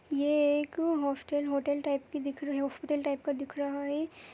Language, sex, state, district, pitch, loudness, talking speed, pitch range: Hindi, female, Chhattisgarh, Kabirdham, 290 Hz, -32 LUFS, 195 wpm, 280-295 Hz